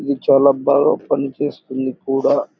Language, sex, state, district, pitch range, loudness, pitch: Telugu, male, Andhra Pradesh, Anantapur, 135-140 Hz, -17 LUFS, 135 Hz